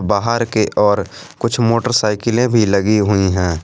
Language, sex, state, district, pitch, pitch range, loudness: Hindi, male, Jharkhand, Garhwa, 105 Hz, 100-115 Hz, -15 LUFS